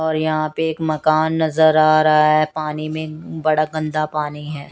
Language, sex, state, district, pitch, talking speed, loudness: Hindi, female, Odisha, Nuapada, 155 Hz, 190 wpm, -18 LUFS